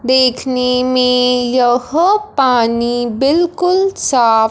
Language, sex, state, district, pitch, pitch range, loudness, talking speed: Hindi, male, Punjab, Fazilka, 255 Hz, 245-280 Hz, -13 LUFS, 80 wpm